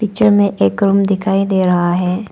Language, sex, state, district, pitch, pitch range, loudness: Hindi, female, Arunachal Pradesh, Papum Pare, 195 Hz, 180-200 Hz, -14 LUFS